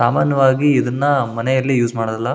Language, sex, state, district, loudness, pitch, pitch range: Kannada, male, Karnataka, Shimoga, -16 LUFS, 130 Hz, 120-135 Hz